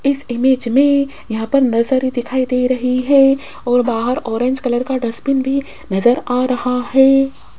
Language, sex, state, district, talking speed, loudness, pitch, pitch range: Hindi, female, Rajasthan, Jaipur, 165 wpm, -16 LUFS, 255 Hz, 245-270 Hz